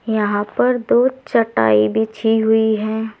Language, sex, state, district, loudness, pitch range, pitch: Hindi, female, Uttar Pradesh, Saharanpur, -17 LUFS, 210-225 Hz, 220 Hz